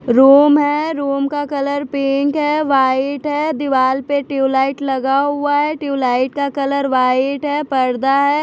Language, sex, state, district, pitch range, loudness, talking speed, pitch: Hindi, female, Chhattisgarh, Raipur, 270-290 Hz, -16 LUFS, 155 wpm, 280 Hz